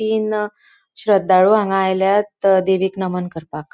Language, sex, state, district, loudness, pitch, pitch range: Konkani, female, Goa, North and South Goa, -17 LUFS, 195 Hz, 190-215 Hz